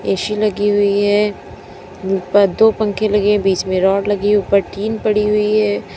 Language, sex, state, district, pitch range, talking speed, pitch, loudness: Hindi, female, Uttar Pradesh, Lalitpur, 195-210 Hz, 180 wpm, 205 Hz, -15 LUFS